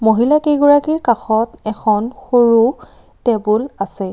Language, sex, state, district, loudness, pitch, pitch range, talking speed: Assamese, female, Assam, Kamrup Metropolitan, -15 LUFS, 235 Hz, 215-290 Hz, 100 wpm